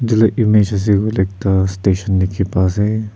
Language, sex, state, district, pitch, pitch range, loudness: Nagamese, male, Nagaland, Kohima, 100 Hz, 95-110 Hz, -16 LUFS